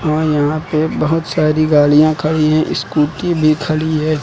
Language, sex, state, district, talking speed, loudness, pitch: Hindi, male, Uttar Pradesh, Lucknow, 170 wpm, -14 LUFS, 155 Hz